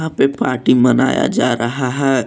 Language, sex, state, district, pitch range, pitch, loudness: Hindi, male, Jharkhand, Palamu, 125-135 Hz, 130 Hz, -15 LUFS